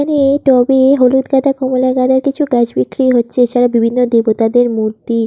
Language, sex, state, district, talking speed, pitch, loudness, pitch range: Bengali, female, West Bengal, Jhargram, 160 wpm, 250 Hz, -12 LUFS, 235-265 Hz